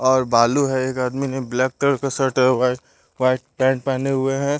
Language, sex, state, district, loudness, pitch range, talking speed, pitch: Hindi, male, Bihar, Patna, -20 LUFS, 130-135 Hz, 220 wpm, 130 Hz